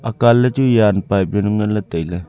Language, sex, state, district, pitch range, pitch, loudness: Wancho, male, Arunachal Pradesh, Longding, 95-120 Hz, 105 Hz, -16 LUFS